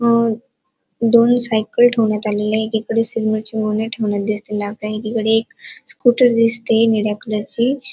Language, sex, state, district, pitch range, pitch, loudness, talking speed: Marathi, female, Maharashtra, Dhule, 215-230 Hz, 225 Hz, -17 LUFS, 130 wpm